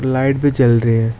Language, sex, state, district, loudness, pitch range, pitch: Hindi, male, West Bengal, Alipurduar, -15 LUFS, 115-135 Hz, 130 Hz